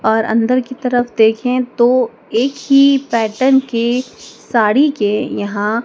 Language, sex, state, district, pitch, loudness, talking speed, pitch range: Hindi, female, Madhya Pradesh, Dhar, 245 Hz, -15 LUFS, 135 wpm, 225-260 Hz